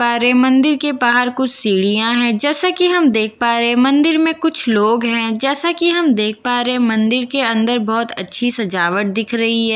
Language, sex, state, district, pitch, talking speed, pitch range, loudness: Hindi, female, Bihar, Katihar, 240 Hz, 235 wpm, 225-275 Hz, -14 LUFS